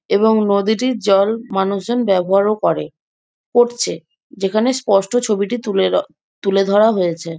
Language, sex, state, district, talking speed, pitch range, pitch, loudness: Bengali, female, West Bengal, Jhargram, 120 wpm, 195-230 Hz, 205 Hz, -17 LUFS